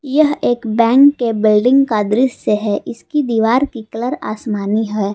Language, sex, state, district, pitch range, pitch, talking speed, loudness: Hindi, female, Jharkhand, Palamu, 215-265 Hz, 230 Hz, 165 wpm, -15 LUFS